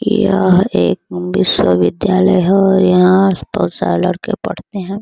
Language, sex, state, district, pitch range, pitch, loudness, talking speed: Hindi, female, Uttar Pradesh, Ghazipur, 175-195 Hz, 190 Hz, -13 LUFS, 145 wpm